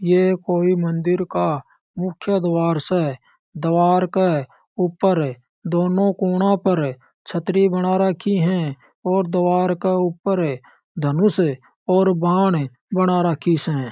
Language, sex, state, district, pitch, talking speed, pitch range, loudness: Marwari, male, Rajasthan, Churu, 180 Hz, 115 wpm, 165-185 Hz, -20 LUFS